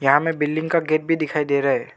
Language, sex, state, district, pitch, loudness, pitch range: Hindi, male, Arunachal Pradesh, Lower Dibang Valley, 155 Hz, -21 LUFS, 145-160 Hz